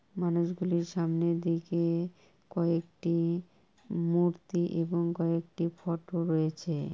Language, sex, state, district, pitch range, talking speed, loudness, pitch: Bengali, female, West Bengal, Kolkata, 170-175 Hz, 85 wpm, -31 LUFS, 170 Hz